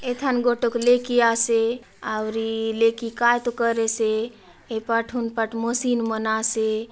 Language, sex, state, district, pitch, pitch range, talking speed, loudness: Halbi, female, Chhattisgarh, Bastar, 230 Hz, 225-240 Hz, 140 wpm, -22 LUFS